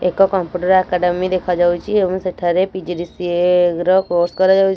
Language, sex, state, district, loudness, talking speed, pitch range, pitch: Odia, female, Odisha, Nuapada, -16 LUFS, 140 wpm, 175-190 Hz, 180 Hz